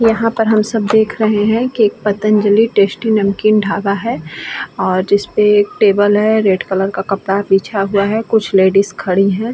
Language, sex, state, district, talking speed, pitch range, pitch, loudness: Hindi, female, Bihar, Vaishali, 190 wpm, 200-220 Hz, 205 Hz, -14 LUFS